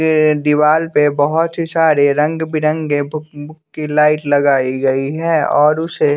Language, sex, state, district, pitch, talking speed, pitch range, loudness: Hindi, male, Bihar, West Champaran, 150 Hz, 145 wpm, 145-160 Hz, -14 LUFS